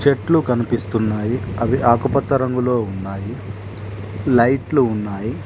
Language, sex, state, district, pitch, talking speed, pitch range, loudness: Telugu, male, Telangana, Mahabubabad, 120 Hz, 90 wpm, 105-130 Hz, -19 LUFS